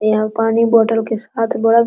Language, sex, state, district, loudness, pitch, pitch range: Hindi, female, Bihar, Araria, -15 LUFS, 225 Hz, 225-230 Hz